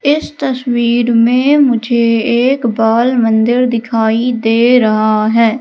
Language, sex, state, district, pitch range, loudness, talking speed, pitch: Hindi, female, Madhya Pradesh, Katni, 225-250 Hz, -12 LUFS, 120 wpm, 235 Hz